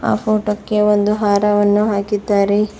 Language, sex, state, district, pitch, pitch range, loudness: Kannada, female, Karnataka, Bidar, 210 Hz, 205-210 Hz, -16 LUFS